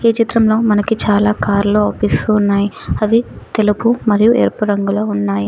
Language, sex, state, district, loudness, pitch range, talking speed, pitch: Telugu, female, Telangana, Mahabubabad, -14 LUFS, 205-225 Hz, 140 wpm, 210 Hz